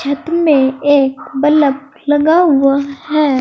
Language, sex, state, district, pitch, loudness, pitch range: Hindi, female, Uttar Pradesh, Saharanpur, 285 Hz, -13 LUFS, 275-305 Hz